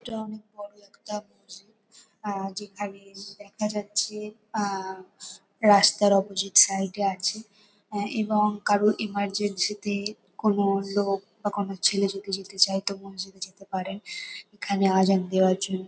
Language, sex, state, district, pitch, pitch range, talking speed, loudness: Bengali, female, West Bengal, Kolkata, 200 Hz, 195-210 Hz, 135 wpm, -25 LUFS